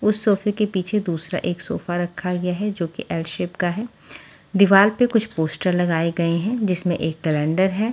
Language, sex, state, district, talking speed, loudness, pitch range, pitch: Hindi, female, Haryana, Charkhi Dadri, 175 wpm, -21 LUFS, 170-210 Hz, 180 Hz